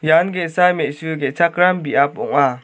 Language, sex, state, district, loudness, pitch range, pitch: Garo, male, Meghalaya, South Garo Hills, -17 LUFS, 145-180 Hz, 165 Hz